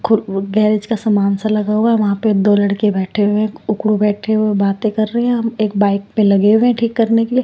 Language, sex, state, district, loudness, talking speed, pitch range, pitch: Hindi, female, Punjab, Pathankot, -15 LUFS, 275 wpm, 205-220 Hz, 215 Hz